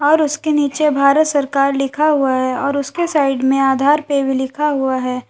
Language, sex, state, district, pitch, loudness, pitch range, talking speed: Hindi, female, Uttar Pradesh, Lalitpur, 280 Hz, -16 LUFS, 265-300 Hz, 205 wpm